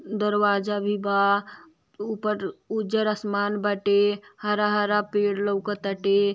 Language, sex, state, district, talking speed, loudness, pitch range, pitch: Bhojpuri, female, Uttar Pradesh, Ghazipur, 105 wpm, -24 LUFS, 200-210 Hz, 205 Hz